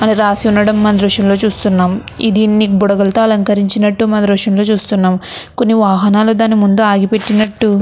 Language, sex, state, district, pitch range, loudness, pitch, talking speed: Telugu, female, Andhra Pradesh, Chittoor, 200-215 Hz, -12 LUFS, 210 Hz, 140 wpm